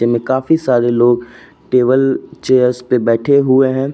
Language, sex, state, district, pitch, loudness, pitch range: Hindi, male, Uttar Pradesh, Jyotiba Phule Nagar, 125 Hz, -14 LUFS, 120-135 Hz